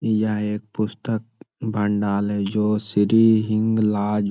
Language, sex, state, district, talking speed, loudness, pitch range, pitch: Hindi, male, Bihar, Jamui, 125 wpm, -21 LUFS, 105-110 Hz, 105 Hz